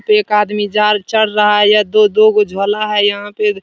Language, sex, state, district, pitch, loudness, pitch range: Hindi, male, Bihar, Supaul, 210 Hz, -12 LUFS, 205-225 Hz